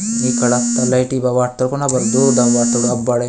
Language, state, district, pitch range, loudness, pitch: Gondi, Chhattisgarh, Sukma, 120-130 Hz, -15 LUFS, 125 Hz